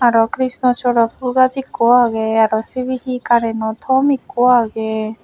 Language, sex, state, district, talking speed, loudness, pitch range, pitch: Chakma, female, Tripura, West Tripura, 150 wpm, -16 LUFS, 225-255 Hz, 240 Hz